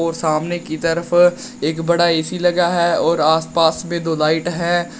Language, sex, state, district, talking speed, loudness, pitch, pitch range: Hindi, male, Uttar Pradesh, Shamli, 180 wpm, -17 LUFS, 170 Hz, 160-175 Hz